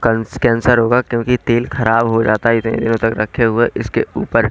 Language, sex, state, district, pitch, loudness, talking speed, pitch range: Hindi, male, Bihar, Katihar, 115 Hz, -15 LUFS, 175 wpm, 115-120 Hz